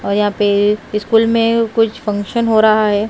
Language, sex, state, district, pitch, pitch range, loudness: Hindi, female, Himachal Pradesh, Shimla, 215 Hz, 205-230 Hz, -14 LUFS